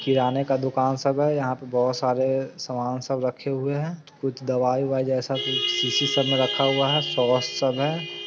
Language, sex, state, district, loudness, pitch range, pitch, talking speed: Hindi, male, Bihar, Sitamarhi, -24 LUFS, 130-140 Hz, 135 Hz, 230 wpm